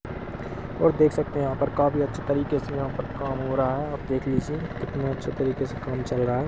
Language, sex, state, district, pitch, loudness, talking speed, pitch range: Hindi, male, Chhattisgarh, Balrampur, 135 Hz, -26 LUFS, 240 wpm, 130-145 Hz